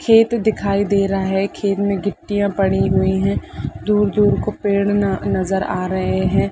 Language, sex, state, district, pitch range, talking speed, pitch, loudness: Hindi, female, Chhattisgarh, Bastar, 195-205 Hz, 175 wpm, 200 Hz, -18 LUFS